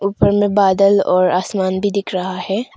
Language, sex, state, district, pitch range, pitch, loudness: Hindi, female, Arunachal Pradesh, Longding, 185-200 Hz, 195 Hz, -16 LUFS